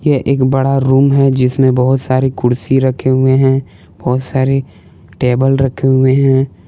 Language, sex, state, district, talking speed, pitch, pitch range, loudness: Hindi, male, Jharkhand, Palamu, 160 wpm, 130 Hz, 125-135 Hz, -13 LUFS